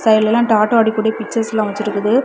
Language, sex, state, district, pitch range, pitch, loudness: Tamil, female, Tamil Nadu, Kanyakumari, 215-225 Hz, 220 Hz, -15 LUFS